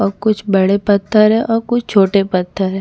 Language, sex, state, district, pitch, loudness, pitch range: Hindi, female, Chhattisgarh, Bastar, 200 Hz, -14 LUFS, 195-215 Hz